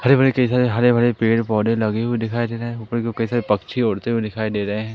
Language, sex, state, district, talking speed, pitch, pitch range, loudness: Hindi, male, Madhya Pradesh, Katni, 315 wpm, 115 Hz, 110-120 Hz, -20 LUFS